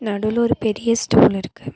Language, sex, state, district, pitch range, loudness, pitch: Tamil, female, Tamil Nadu, Nilgiris, 210-235 Hz, -18 LUFS, 220 Hz